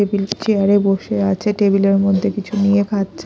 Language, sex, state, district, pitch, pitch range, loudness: Bengali, female, Odisha, Khordha, 200 Hz, 195-205 Hz, -16 LUFS